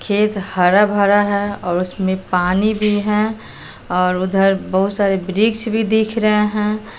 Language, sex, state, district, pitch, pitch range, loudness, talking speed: Hindi, female, Bihar, West Champaran, 205 Hz, 190-210 Hz, -17 LUFS, 155 wpm